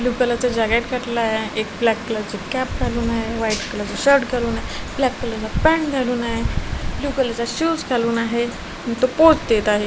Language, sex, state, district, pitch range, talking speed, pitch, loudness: Marathi, female, Maharashtra, Washim, 225-255 Hz, 220 wpm, 235 Hz, -20 LUFS